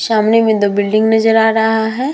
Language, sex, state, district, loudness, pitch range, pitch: Hindi, female, Bihar, Vaishali, -13 LUFS, 215-225 Hz, 220 Hz